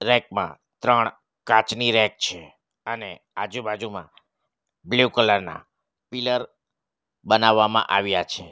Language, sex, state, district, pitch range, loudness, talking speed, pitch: Gujarati, male, Gujarat, Valsad, 100-120 Hz, -22 LUFS, 105 wpm, 110 Hz